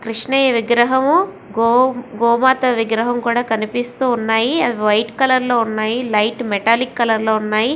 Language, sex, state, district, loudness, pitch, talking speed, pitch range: Telugu, female, Andhra Pradesh, Visakhapatnam, -16 LUFS, 235 Hz, 130 wpm, 225-255 Hz